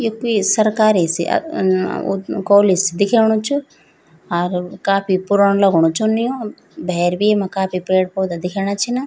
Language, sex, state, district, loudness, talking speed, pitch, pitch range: Garhwali, female, Uttarakhand, Tehri Garhwal, -17 LUFS, 160 wpm, 195 Hz, 185-215 Hz